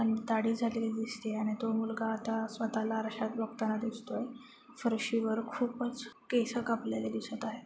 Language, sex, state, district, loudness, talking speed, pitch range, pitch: Marathi, female, Maharashtra, Chandrapur, -34 LUFS, 140 wpm, 220-235 Hz, 225 Hz